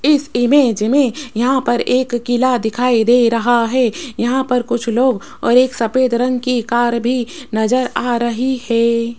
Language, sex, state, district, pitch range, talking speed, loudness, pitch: Hindi, female, Rajasthan, Jaipur, 235-255 Hz, 170 wpm, -16 LUFS, 245 Hz